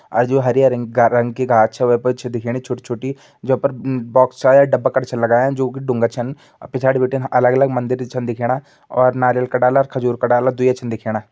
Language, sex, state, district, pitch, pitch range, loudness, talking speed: Hindi, male, Uttarakhand, Tehri Garhwal, 125 Hz, 120-130 Hz, -17 LUFS, 230 wpm